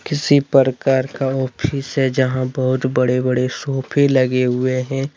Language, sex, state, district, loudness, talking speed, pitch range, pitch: Hindi, male, Jharkhand, Deoghar, -18 LUFS, 160 wpm, 130-135 Hz, 130 Hz